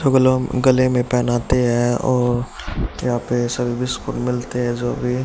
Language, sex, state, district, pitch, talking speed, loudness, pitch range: Hindi, male, Haryana, Jhajjar, 125 Hz, 150 wpm, -19 LUFS, 120-125 Hz